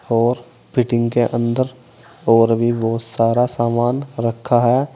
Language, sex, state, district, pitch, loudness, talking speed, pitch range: Hindi, male, Uttar Pradesh, Saharanpur, 120 Hz, -18 LUFS, 135 wpm, 115-125 Hz